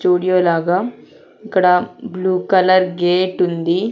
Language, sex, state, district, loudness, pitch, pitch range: Telugu, female, Andhra Pradesh, Sri Satya Sai, -16 LUFS, 185 Hz, 180-185 Hz